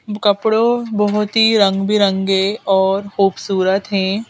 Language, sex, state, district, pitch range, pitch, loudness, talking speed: Hindi, female, Madhya Pradesh, Bhopal, 195-210 Hz, 200 Hz, -16 LUFS, 110 wpm